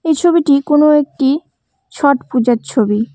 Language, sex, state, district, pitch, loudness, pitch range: Bengali, female, West Bengal, Cooch Behar, 285 Hz, -13 LUFS, 245-300 Hz